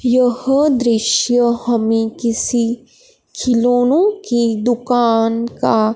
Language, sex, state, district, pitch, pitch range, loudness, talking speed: Hindi, male, Punjab, Fazilka, 240 Hz, 230-250 Hz, -15 LUFS, 80 wpm